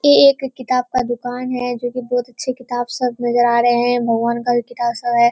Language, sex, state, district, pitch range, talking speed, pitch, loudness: Hindi, female, Bihar, Kishanganj, 240-250 Hz, 250 wpm, 245 Hz, -18 LUFS